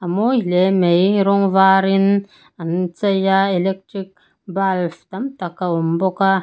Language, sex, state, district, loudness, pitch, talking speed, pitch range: Mizo, female, Mizoram, Aizawl, -17 LUFS, 190 Hz, 150 wpm, 180-195 Hz